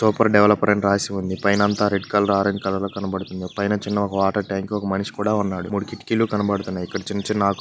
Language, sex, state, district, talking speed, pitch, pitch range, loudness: Telugu, male, Andhra Pradesh, Krishna, 230 wpm, 100 Hz, 95-105 Hz, -21 LUFS